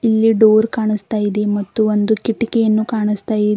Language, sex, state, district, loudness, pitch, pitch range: Kannada, female, Karnataka, Bidar, -16 LUFS, 215 Hz, 210-225 Hz